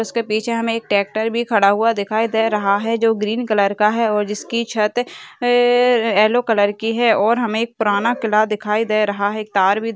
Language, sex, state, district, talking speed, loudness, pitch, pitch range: Hindi, female, Rajasthan, Churu, 230 wpm, -17 LUFS, 220 Hz, 210-230 Hz